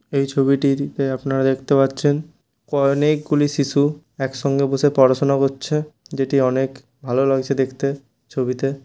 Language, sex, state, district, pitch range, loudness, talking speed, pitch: Bengali, male, West Bengal, Malda, 135-145 Hz, -19 LUFS, 120 wpm, 135 Hz